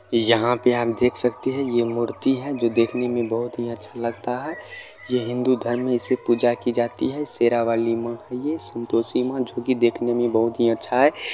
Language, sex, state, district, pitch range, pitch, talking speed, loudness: Maithili, male, Bihar, Supaul, 115-125 Hz, 120 Hz, 215 wpm, -22 LUFS